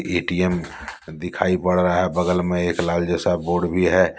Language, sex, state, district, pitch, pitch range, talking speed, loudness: Hindi, male, Jharkhand, Deoghar, 90 Hz, 85-90 Hz, 185 wpm, -21 LUFS